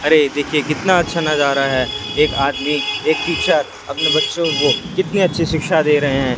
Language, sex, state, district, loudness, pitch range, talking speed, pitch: Hindi, male, Chhattisgarh, Raipur, -16 LUFS, 140-160 Hz, 180 wpm, 150 Hz